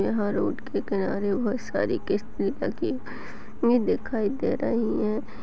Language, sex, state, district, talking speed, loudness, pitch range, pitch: Hindi, female, Uttarakhand, Uttarkashi, 120 wpm, -27 LUFS, 205-240 Hz, 220 Hz